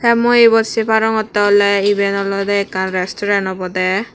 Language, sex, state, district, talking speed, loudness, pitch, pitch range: Chakma, female, Tripura, West Tripura, 145 wpm, -15 LUFS, 205 Hz, 195-220 Hz